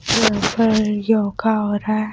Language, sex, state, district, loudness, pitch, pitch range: Hindi, female, Delhi, New Delhi, -18 LUFS, 215 Hz, 210-220 Hz